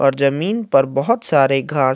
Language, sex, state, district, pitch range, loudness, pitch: Hindi, male, Uttar Pradesh, Jalaun, 135-185 Hz, -17 LUFS, 140 Hz